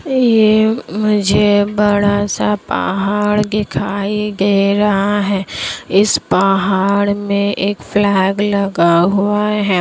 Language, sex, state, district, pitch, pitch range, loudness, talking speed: Hindi, female, Bihar, Kishanganj, 205 Hz, 195-210 Hz, -14 LUFS, 100 wpm